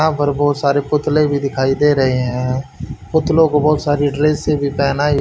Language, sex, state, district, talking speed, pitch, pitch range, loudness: Hindi, male, Haryana, Rohtak, 195 wpm, 145 Hz, 140-150 Hz, -16 LUFS